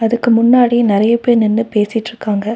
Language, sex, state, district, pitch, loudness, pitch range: Tamil, female, Tamil Nadu, Nilgiris, 225 Hz, -13 LUFS, 215-235 Hz